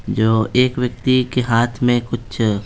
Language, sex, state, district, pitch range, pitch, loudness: Hindi, male, Bihar, Patna, 115-125 Hz, 120 Hz, -18 LUFS